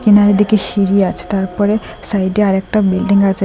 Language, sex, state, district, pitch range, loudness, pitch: Bengali, female, Assam, Hailakandi, 195-205 Hz, -14 LUFS, 200 Hz